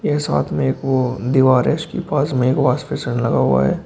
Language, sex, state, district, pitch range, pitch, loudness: Hindi, male, Uttar Pradesh, Shamli, 125-145 Hz, 130 Hz, -18 LUFS